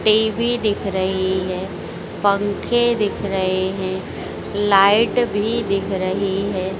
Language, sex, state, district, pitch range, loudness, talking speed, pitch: Hindi, female, Madhya Pradesh, Dhar, 190-215 Hz, -19 LUFS, 115 wpm, 200 Hz